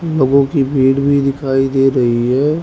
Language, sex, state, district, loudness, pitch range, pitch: Hindi, male, Haryana, Rohtak, -14 LUFS, 135-140 Hz, 135 Hz